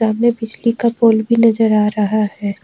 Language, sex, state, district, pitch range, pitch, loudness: Hindi, female, Jharkhand, Ranchi, 210-230 Hz, 225 Hz, -15 LUFS